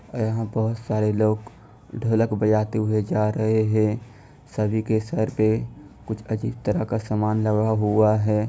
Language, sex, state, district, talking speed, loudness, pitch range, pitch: Hindi, male, Bihar, Kishanganj, 155 wpm, -23 LUFS, 105-110 Hz, 110 Hz